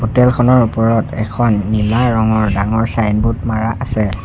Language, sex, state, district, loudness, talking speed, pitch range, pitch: Assamese, male, Assam, Sonitpur, -14 LUFS, 125 wpm, 110-115 Hz, 110 Hz